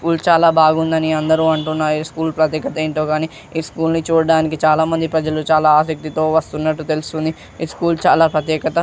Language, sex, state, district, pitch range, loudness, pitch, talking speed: Telugu, female, Andhra Pradesh, Krishna, 155-160 Hz, -16 LUFS, 160 Hz, 165 wpm